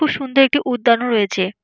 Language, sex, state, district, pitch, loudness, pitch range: Bengali, female, West Bengal, Jalpaiguri, 245 Hz, -16 LUFS, 220-270 Hz